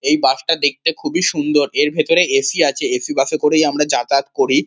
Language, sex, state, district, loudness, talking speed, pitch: Bengali, male, West Bengal, Kolkata, -16 LUFS, 220 wpm, 150 Hz